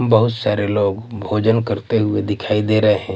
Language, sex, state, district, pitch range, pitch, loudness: Hindi, male, Maharashtra, Mumbai Suburban, 100-110 Hz, 105 Hz, -18 LUFS